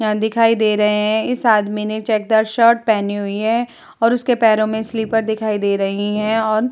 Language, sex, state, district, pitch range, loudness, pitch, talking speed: Hindi, female, Bihar, Vaishali, 210-225 Hz, -17 LUFS, 220 Hz, 205 wpm